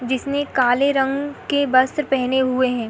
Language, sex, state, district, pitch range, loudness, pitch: Hindi, female, Uttar Pradesh, Hamirpur, 255-280 Hz, -19 LUFS, 265 Hz